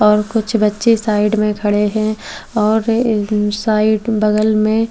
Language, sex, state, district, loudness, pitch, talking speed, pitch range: Hindi, female, Maharashtra, Chandrapur, -15 LUFS, 215 Hz, 160 wpm, 210-220 Hz